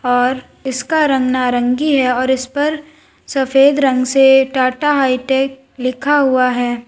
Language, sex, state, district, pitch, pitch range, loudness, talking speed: Hindi, female, Uttar Pradesh, Lalitpur, 265 Hz, 255-275 Hz, -15 LUFS, 140 wpm